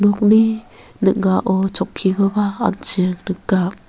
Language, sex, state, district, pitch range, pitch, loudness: Garo, female, Meghalaya, West Garo Hills, 190-210 Hz, 195 Hz, -17 LUFS